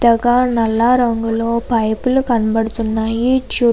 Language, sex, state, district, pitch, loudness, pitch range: Telugu, female, Andhra Pradesh, Krishna, 235 Hz, -16 LUFS, 225-245 Hz